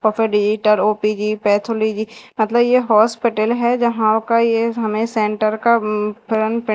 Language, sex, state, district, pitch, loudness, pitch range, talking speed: Hindi, female, Madhya Pradesh, Dhar, 220 Hz, -17 LUFS, 215-230 Hz, 150 wpm